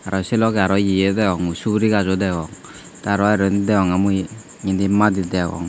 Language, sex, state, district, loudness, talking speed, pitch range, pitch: Chakma, male, Tripura, Dhalai, -19 LUFS, 190 wpm, 95-105 Hz, 95 Hz